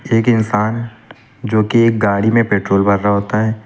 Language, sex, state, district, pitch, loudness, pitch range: Hindi, male, Uttar Pradesh, Lucknow, 110 Hz, -15 LUFS, 105-115 Hz